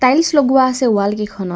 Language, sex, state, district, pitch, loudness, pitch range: Assamese, female, Assam, Kamrup Metropolitan, 255 Hz, -15 LUFS, 205-265 Hz